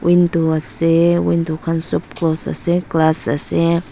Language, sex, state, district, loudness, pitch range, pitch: Nagamese, female, Nagaland, Dimapur, -15 LUFS, 160-170 Hz, 165 Hz